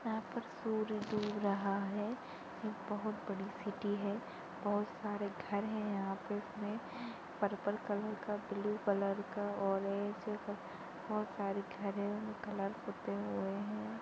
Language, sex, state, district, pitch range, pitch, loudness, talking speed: Hindi, female, Chhattisgarh, Sarguja, 200-215 Hz, 205 Hz, -40 LUFS, 125 wpm